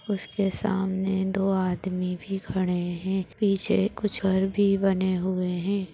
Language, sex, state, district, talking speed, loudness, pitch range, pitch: Hindi, male, Bihar, Samastipur, 140 wpm, -26 LUFS, 185-195 Hz, 190 Hz